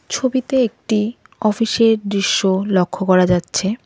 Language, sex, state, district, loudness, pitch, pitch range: Bengali, female, West Bengal, Cooch Behar, -17 LUFS, 205 Hz, 190-230 Hz